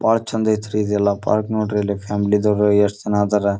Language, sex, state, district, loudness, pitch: Kannada, male, Karnataka, Dharwad, -19 LUFS, 105 Hz